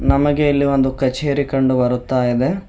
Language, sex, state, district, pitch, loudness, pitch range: Kannada, male, Karnataka, Bidar, 135 Hz, -17 LUFS, 130-145 Hz